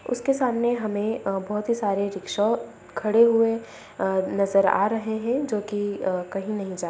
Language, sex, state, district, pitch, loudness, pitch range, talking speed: Hindi, female, Bihar, Madhepura, 210 Hz, -24 LUFS, 195-230 Hz, 180 wpm